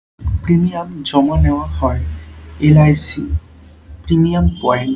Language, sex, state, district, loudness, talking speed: Bengali, male, West Bengal, Dakshin Dinajpur, -15 LUFS, 120 wpm